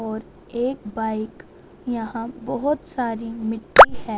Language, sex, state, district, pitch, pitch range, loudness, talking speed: Hindi, female, Punjab, Fazilka, 230 Hz, 220-245 Hz, -20 LUFS, 115 wpm